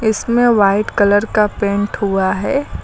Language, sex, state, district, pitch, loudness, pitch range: Hindi, female, Uttar Pradesh, Lucknow, 205 Hz, -15 LUFS, 200-230 Hz